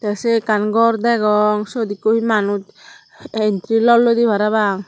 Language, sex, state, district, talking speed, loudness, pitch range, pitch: Chakma, female, Tripura, Dhalai, 145 wpm, -16 LUFS, 210-230 Hz, 215 Hz